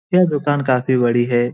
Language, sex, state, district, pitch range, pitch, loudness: Hindi, male, Bihar, Lakhisarai, 120-145 Hz, 130 Hz, -17 LUFS